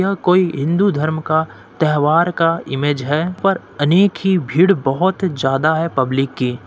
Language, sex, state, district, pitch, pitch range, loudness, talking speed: Hindi, male, Jharkhand, Ranchi, 160 Hz, 140-185 Hz, -16 LUFS, 170 wpm